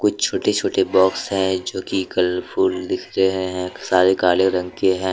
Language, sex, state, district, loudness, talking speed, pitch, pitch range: Hindi, male, Jharkhand, Deoghar, -19 LUFS, 175 wpm, 95 Hz, 90-100 Hz